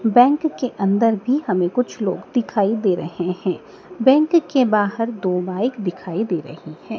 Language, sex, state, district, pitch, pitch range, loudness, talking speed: Hindi, female, Madhya Pradesh, Dhar, 215 Hz, 185-245 Hz, -20 LUFS, 170 wpm